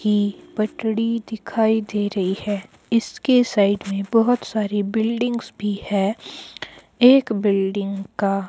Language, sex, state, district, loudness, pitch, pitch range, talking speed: Hindi, male, Himachal Pradesh, Shimla, -21 LUFS, 210 Hz, 200-230 Hz, 120 wpm